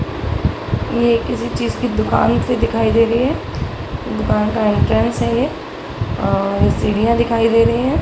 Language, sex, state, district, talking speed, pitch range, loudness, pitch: Hindi, female, Bihar, Araria, 170 wpm, 220-235 Hz, -17 LUFS, 230 Hz